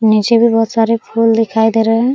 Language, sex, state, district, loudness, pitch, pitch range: Hindi, female, Uttar Pradesh, Hamirpur, -12 LUFS, 225 Hz, 225-230 Hz